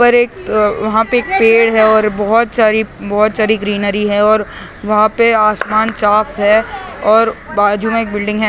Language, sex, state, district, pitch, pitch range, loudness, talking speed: Hindi, male, Maharashtra, Mumbai Suburban, 215 Hz, 210-225 Hz, -12 LUFS, 190 wpm